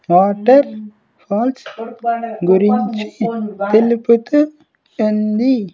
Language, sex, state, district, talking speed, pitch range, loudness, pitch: Telugu, male, Andhra Pradesh, Sri Satya Sai, 50 wpm, 210-240 Hz, -16 LUFS, 225 Hz